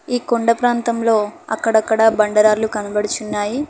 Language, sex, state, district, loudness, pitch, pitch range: Telugu, female, Telangana, Hyderabad, -17 LUFS, 220 Hz, 210-235 Hz